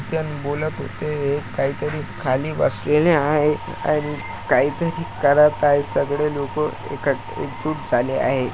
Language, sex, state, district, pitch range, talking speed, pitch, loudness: Marathi, male, Maharashtra, Chandrapur, 135-150 Hz, 125 wpm, 145 Hz, -21 LUFS